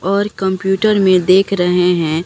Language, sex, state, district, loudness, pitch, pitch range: Hindi, male, Bihar, Katihar, -14 LUFS, 190 Hz, 180-195 Hz